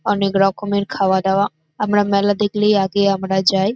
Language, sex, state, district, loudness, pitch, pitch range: Bengali, female, West Bengal, North 24 Parganas, -17 LUFS, 200 Hz, 190-205 Hz